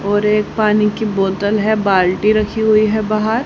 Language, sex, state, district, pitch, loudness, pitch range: Hindi, female, Haryana, Jhajjar, 215 Hz, -15 LUFS, 205-215 Hz